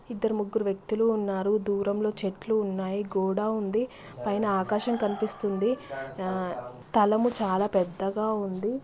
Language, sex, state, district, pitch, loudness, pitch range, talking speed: Telugu, female, Andhra Pradesh, Guntur, 205 Hz, -28 LUFS, 190-215 Hz, 110 wpm